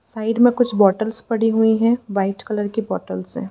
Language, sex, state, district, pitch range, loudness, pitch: Hindi, female, Madhya Pradesh, Dhar, 205-225 Hz, -19 LUFS, 220 Hz